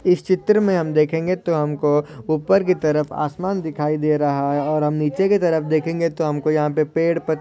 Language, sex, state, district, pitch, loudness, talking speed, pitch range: Hindi, male, Maharashtra, Solapur, 155 Hz, -20 LUFS, 220 wpm, 150-175 Hz